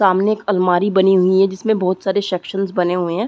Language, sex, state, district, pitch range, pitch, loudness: Hindi, female, Uttar Pradesh, Muzaffarnagar, 185-200 Hz, 190 Hz, -17 LUFS